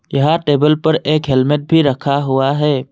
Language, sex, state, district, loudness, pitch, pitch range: Hindi, male, Assam, Kamrup Metropolitan, -14 LUFS, 145 Hz, 135-155 Hz